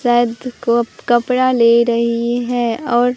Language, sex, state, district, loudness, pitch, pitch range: Hindi, female, Bihar, Katihar, -16 LUFS, 240 Hz, 235-245 Hz